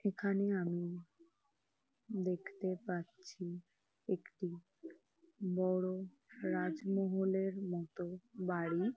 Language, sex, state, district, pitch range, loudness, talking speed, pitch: Bengali, female, West Bengal, Kolkata, 180-200 Hz, -39 LUFS, 65 wpm, 185 Hz